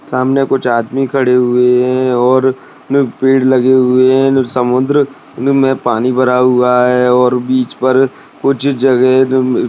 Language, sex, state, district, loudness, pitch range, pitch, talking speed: Hindi, male, Maharashtra, Sindhudurg, -12 LUFS, 125-135 Hz, 130 Hz, 140 wpm